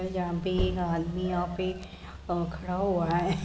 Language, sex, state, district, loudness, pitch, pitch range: Hindi, female, Uttar Pradesh, Jalaun, -30 LUFS, 175 Hz, 170-185 Hz